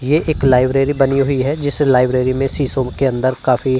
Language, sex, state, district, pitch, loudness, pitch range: Hindi, male, Uttar Pradesh, Varanasi, 135 Hz, -16 LUFS, 130-140 Hz